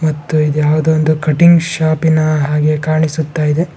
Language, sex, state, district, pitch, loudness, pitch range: Kannada, male, Karnataka, Bangalore, 155 Hz, -13 LUFS, 150-160 Hz